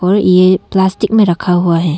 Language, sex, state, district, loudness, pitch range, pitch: Hindi, female, Arunachal Pradesh, Longding, -11 LUFS, 175-195 Hz, 185 Hz